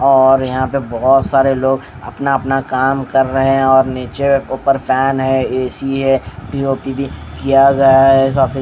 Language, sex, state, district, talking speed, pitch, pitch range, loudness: Hindi, male, Haryana, Rohtak, 175 wpm, 135 Hz, 130-135 Hz, -14 LUFS